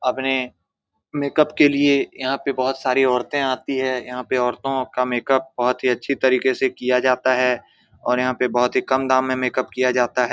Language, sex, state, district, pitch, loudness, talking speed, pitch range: Hindi, male, Bihar, Saran, 130 Hz, -20 LUFS, 210 wpm, 125-135 Hz